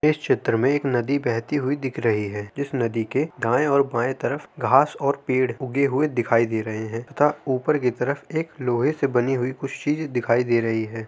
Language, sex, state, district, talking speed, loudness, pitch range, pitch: Hindi, male, Uttar Pradesh, Hamirpur, 220 wpm, -23 LUFS, 120-140 Hz, 130 Hz